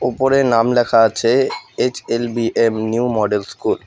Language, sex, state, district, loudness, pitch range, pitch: Bengali, male, West Bengal, Alipurduar, -17 LUFS, 110-125 Hz, 115 Hz